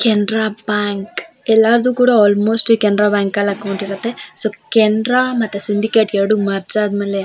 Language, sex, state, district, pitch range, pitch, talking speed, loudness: Kannada, female, Karnataka, Shimoga, 205-225 Hz, 210 Hz, 155 wpm, -15 LUFS